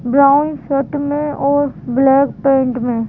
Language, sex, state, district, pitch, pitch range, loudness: Hindi, female, Madhya Pradesh, Bhopal, 275 Hz, 260-285 Hz, -15 LUFS